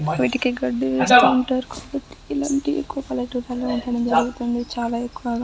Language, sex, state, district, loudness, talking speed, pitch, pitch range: Telugu, male, Andhra Pradesh, Guntur, -21 LUFS, 120 wpm, 245 Hz, 235-255 Hz